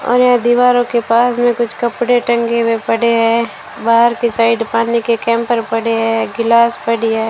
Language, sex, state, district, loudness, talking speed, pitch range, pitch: Hindi, female, Rajasthan, Bikaner, -14 LUFS, 190 wpm, 230-240 Hz, 235 Hz